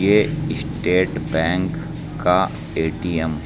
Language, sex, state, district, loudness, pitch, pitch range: Hindi, male, Uttar Pradesh, Saharanpur, -21 LUFS, 90 Hz, 80-100 Hz